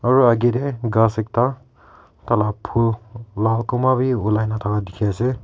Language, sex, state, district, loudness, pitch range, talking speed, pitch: Nagamese, male, Nagaland, Kohima, -20 LUFS, 110-125 Hz, 155 wpm, 115 Hz